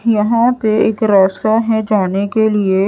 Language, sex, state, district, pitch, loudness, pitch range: Hindi, female, Odisha, Nuapada, 215 Hz, -14 LUFS, 200-220 Hz